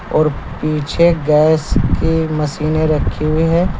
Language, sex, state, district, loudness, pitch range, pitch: Hindi, male, Uttar Pradesh, Saharanpur, -15 LUFS, 155-160 Hz, 155 Hz